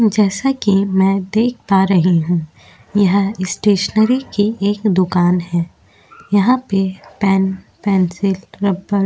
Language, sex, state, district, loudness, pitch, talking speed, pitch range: Hindi, female, Uttar Pradesh, Jyotiba Phule Nagar, -16 LUFS, 195 Hz, 125 wpm, 185-205 Hz